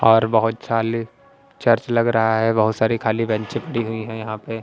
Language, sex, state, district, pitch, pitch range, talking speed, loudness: Hindi, male, Haryana, Jhajjar, 115 Hz, 110-115 Hz, 205 wpm, -20 LUFS